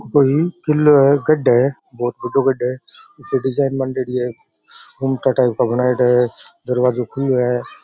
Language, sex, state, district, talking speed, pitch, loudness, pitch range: Rajasthani, male, Rajasthan, Nagaur, 120 wpm, 130 Hz, -17 LUFS, 125-140 Hz